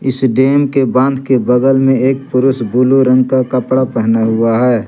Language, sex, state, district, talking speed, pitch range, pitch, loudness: Hindi, male, Jharkhand, Garhwa, 195 wpm, 125-135 Hz, 130 Hz, -12 LUFS